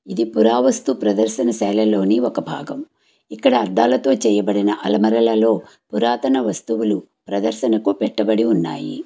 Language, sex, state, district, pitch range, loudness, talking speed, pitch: Telugu, female, Telangana, Hyderabad, 105-115 Hz, -18 LUFS, 110 wpm, 110 Hz